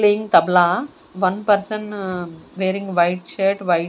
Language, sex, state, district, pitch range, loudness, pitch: English, female, Punjab, Kapurthala, 180-205 Hz, -19 LUFS, 190 Hz